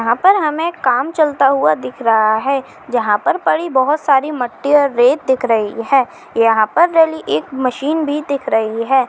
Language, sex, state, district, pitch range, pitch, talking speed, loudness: Chhattisgarhi, female, Chhattisgarh, Kabirdham, 230-300 Hz, 270 Hz, 190 wpm, -15 LUFS